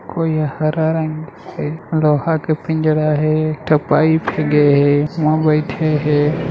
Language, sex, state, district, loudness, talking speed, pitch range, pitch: Chhattisgarhi, male, Chhattisgarh, Raigarh, -16 LUFS, 155 wpm, 150-160 Hz, 155 Hz